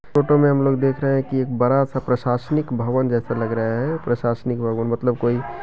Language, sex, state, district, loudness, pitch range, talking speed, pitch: Maithili, male, Bihar, Begusarai, -20 LUFS, 120-135 Hz, 225 wpm, 125 Hz